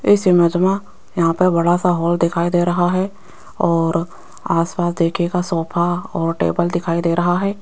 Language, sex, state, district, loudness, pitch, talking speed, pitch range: Hindi, female, Rajasthan, Jaipur, -18 LUFS, 175 Hz, 180 wpm, 170-180 Hz